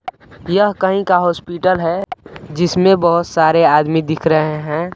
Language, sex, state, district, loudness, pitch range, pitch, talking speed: Hindi, male, Bihar, Kaimur, -15 LUFS, 160-185 Hz, 175 Hz, 145 wpm